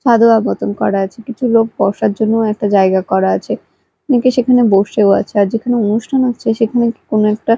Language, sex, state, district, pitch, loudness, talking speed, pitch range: Bengali, female, Odisha, Malkangiri, 225 Hz, -14 LUFS, 190 wpm, 205-240 Hz